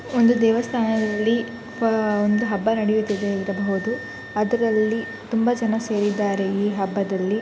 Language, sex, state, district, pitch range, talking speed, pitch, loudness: Kannada, female, Karnataka, Shimoga, 205-230 Hz, 130 wpm, 220 Hz, -22 LUFS